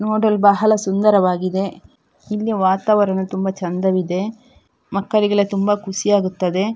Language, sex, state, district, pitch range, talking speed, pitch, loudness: Kannada, female, Karnataka, Dakshina Kannada, 190-210 Hz, 90 wpm, 200 Hz, -18 LUFS